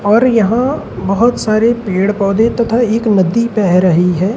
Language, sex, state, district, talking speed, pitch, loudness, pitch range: Hindi, male, Madhya Pradesh, Umaria, 165 wpm, 215 Hz, -13 LUFS, 195-235 Hz